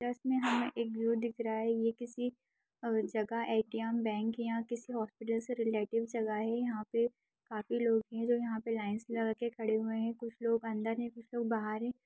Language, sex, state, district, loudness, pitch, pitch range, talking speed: Hindi, female, Bihar, Jahanabad, -36 LUFS, 230 Hz, 225-235 Hz, 220 wpm